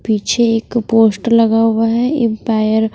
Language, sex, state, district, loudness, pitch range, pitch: Hindi, female, Punjab, Pathankot, -14 LUFS, 220-230 Hz, 225 Hz